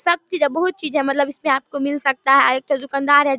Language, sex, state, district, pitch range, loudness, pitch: Hindi, female, Bihar, Darbhanga, 275-300 Hz, -18 LUFS, 285 Hz